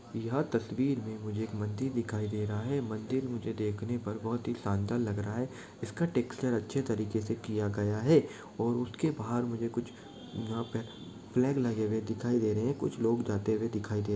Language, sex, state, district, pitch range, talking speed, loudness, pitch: Maithili, male, Bihar, Supaul, 110-120 Hz, 210 wpm, -33 LUFS, 115 Hz